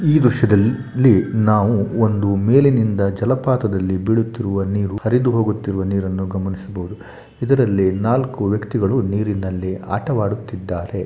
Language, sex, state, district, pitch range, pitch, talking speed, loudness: Kannada, male, Karnataka, Shimoga, 95-120 Hz, 105 Hz, 90 wpm, -18 LUFS